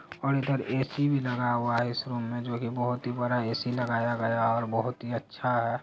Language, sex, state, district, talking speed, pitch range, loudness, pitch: Hindi, male, Bihar, Araria, 260 wpm, 120-125 Hz, -29 LUFS, 120 Hz